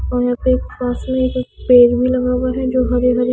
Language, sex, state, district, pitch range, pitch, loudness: Hindi, female, Haryana, Charkhi Dadri, 245-255 Hz, 250 Hz, -16 LUFS